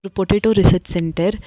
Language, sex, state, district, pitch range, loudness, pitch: Tamil, female, Tamil Nadu, Nilgiris, 180-205 Hz, -17 LUFS, 195 Hz